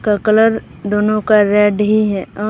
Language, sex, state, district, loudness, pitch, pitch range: Hindi, female, Bihar, Katihar, -14 LUFS, 210 Hz, 205-215 Hz